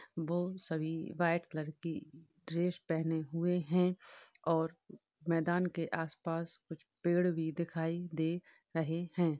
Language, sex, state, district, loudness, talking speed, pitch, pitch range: Hindi, female, Uttar Pradesh, Etah, -36 LUFS, 140 wpm, 165 Hz, 160-175 Hz